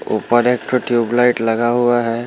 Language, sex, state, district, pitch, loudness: Hindi, male, Bihar, Muzaffarpur, 120 Hz, -16 LUFS